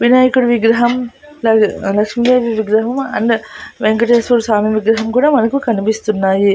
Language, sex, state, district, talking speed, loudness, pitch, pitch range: Telugu, female, Andhra Pradesh, Annamaya, 110 wpm, -14 LUFS, 230 Hz, 215-245 Hz